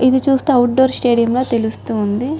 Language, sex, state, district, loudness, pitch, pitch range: Telugu, female, Telangana, Nalgonda, -15 LUFS, 255 Hz, 235-260 Hz